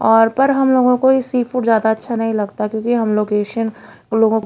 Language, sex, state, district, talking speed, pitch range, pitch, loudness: Hindi, female, Haryana, Jhajjar, 230 wpm, 220-250 Hz, 225 Hz, -16 LUFS